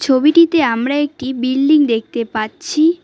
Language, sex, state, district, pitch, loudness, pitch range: Bengali, female, West Bengal, Cooch Behar, 275 Hz, -15 LUFS, 250-310 Hz